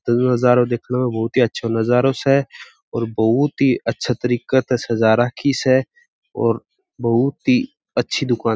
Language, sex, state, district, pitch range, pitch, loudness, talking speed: Marwari, male, Rajasthan, Churu, 120-135 Hz, 125 Hz, -18 LUFS, 160 wpm